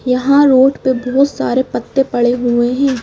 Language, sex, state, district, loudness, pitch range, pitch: Hindi, female, Madhya Pradesh, Bhopal, -13 LUFS, 250-275 Hz, 260 Hz